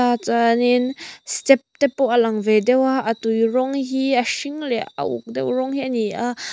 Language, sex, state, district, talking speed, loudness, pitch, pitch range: Mizo, female, Mizoram, Aizawl, 210 wpm, -20 LUFS, 245 Hz, 230-265 Hz